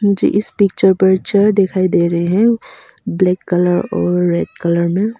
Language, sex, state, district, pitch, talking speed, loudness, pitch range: Hindi, female, Arunachal Pradesh, Papum Pare, 190 Hz, 175 wpm, -15 LUFS, 170-200 Hz